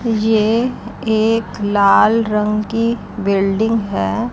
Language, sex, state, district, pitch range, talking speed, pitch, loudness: Hindi, female, Chandigarh, Chandigarh, 205-225 Hz, 95 wpm, 220 Hz, -16 LUFS